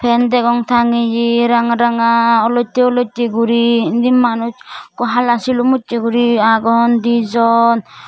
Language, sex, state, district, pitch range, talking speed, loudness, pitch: Chakma, female, Tripura, Dhalai, 230-240 Hz, 125 wpm, -13 LUFS, 235 Hz